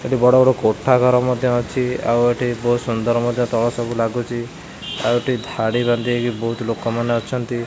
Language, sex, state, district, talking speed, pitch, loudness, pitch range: Odia, male, Odisha, Khordha, 180 wpm, 120 Hz, -19 LUFS, 115-125 Hz